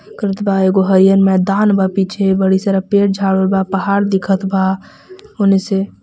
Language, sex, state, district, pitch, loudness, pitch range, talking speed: Bhojpuri, female, Jharkhand, Palamu, 195 Hz, -14 LUFS, 190-200 Hz, 170 wpm